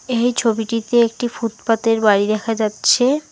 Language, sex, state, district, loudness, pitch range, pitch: Bengali, female, West Bengal, Alipurduar, -17 LUFS, 225-240 Hz, 230 Hz